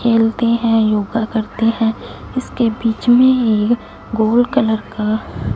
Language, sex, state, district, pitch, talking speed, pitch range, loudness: Hindi, female, Punjab, Fazilka, 225 Hz, 130 wpm, 220-235 Hz, -16 LUFS